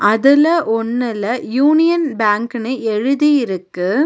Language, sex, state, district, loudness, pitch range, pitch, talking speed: Tamil, female, Tamil Nadu, Nilgiris, -15 LUFS, 220-285 Hz, 240 Hz, 90 wpm